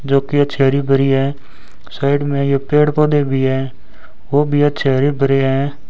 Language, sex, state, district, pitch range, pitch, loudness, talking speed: Hindi, male, Rajasthan, Bikaner, 135-145 Hz, 140 Hz, -15 LUFS, 175 wpm